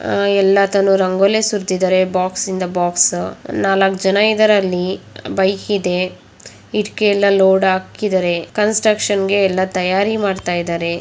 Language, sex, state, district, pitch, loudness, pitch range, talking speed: Kannada, female, Karnataka, Dakshina Kannada, 190 Hz, -16 LUFS, 185-200 Hz, 120 wpm